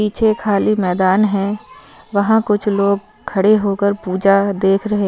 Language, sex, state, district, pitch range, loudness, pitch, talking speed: Hindi, female, Punjab, Fazilka, 195-215 Hz, -16 LUFS, 200 Hz, 165 wpm